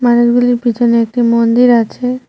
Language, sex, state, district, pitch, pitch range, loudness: Bengali, female, West Bengal, Cooch Behar, 240 Hz, 235-245 Hz, -12 LUFS